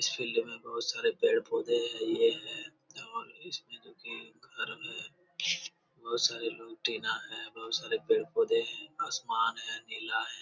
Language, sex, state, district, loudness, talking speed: Hindi, male, Bihar, Jamui, -33 LUFS, 145 wpm